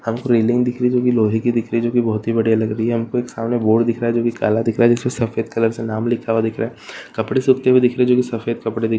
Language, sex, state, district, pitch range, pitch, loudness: Hindi, male, Bihar, Gaya, 115-120 Hz, 115 Hz, -18 LUFS